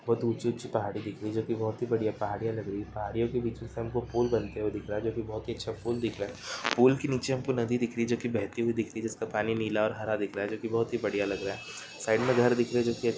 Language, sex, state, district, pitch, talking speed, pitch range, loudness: Hindi, male, Chhattisgarh, Korba, 115 Hz, 330 wpm, 105-120 Hz, -31 LUFS